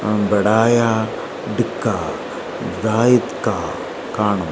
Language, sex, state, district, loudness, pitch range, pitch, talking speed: Malayalam, male, Kerala, Kasaragod, -19 LUFS, 105-115 Hz, 110 Hz, 55 wpm